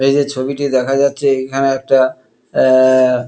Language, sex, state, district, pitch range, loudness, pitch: Bengali, male, West Bengal, Kolkata, 130-140 Hz, -14 LUFS, 135 Hz